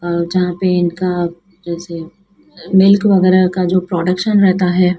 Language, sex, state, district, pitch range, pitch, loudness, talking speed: Hindi, female, Madhya Pradesh, Dhar, 175-185 Hz, 180 Hz, -14 LUFS, 145 wpm